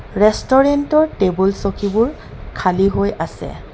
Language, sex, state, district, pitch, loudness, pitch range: Assamese, female, Assam, Kamrup Metropolitan, 200 Hz, -17 LUFS, 185-230 Hz